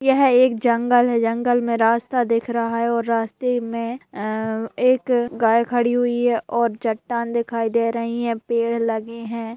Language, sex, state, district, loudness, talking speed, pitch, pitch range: Hindi, female, Uttar Pradesh, Budaun, -20 LUFS, 175 wpm, 235 Hz, 230-240 Hz